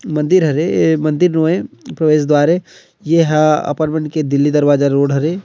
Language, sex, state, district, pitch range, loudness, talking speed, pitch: Chhattisgarhi, male, Chhattisgarh, Rajnandgaon, 145-165 Hz, -14 LUFS, 175 wpm, 155 Hz